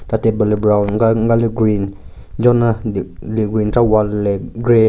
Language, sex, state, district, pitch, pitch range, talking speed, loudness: Rengma, male, Nagaland, Kohima, 110 Hz, 105-115 Hz, 210 wpm, -16 LUFS